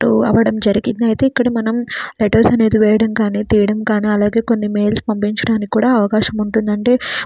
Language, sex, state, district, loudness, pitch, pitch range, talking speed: Telugu, female, Andhra Pradesh, Srikakulam, -15 LUFS, 220 Hz, 210-230 Hz, 150 wpm